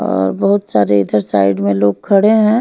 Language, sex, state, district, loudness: Hindi, female, Himachal Pradesh, Shimla, -13 LUFS